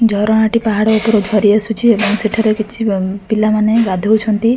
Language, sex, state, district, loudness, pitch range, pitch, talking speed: Odia, female, Odisha, Khordha, -14 LUFS, 210-220 Hz, 215 Hz, 145 wpm